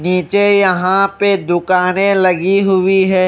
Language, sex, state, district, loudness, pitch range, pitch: Hindi, male, Odisha, Malkangiri, -13 LUFS, 185-195 Hz, 190 Hz